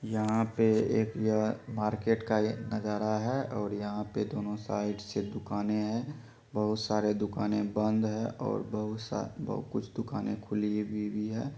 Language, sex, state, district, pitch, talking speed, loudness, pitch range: Angika, male, Bihar, Supaul, 110 Hz, 160 wpm, -32 LUFS, 105-110 Hz